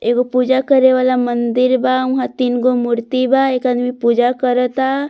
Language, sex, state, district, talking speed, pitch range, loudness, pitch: Bhojpuri, female, Bihar, Muzaffarpur, 200 wpm, 245-260 Hz, -15 LUFS, 255 Hz